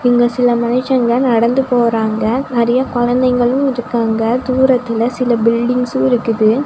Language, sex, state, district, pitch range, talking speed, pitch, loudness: Tamil, female, Tamil Nadu, Nilgiris, 235-255 Hz, 110 wpm, 245 Hz, -14 LUFS